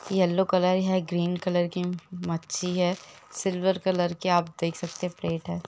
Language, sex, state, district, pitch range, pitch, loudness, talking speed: Hindi, female, Jharkhand, Jamtara, 175-185 Hz, 180 Hz, -27 LUFS, 180 wpm